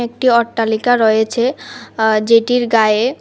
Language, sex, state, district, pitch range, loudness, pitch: Bengali, female, Tripura, West Tripura, 220-245 Hz, -14 LUFS, 230 Hz